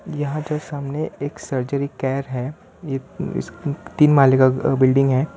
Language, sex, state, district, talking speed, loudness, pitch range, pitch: Hindi, male, Gujarat, Valsad, 155 wpm, -20 LUFS, 135-150 Hz, 140 Hz